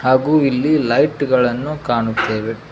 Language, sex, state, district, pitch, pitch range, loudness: Kannada, male, Karnataka, Koppal, 130 Hz, 120-145 Hz, -17 LUFS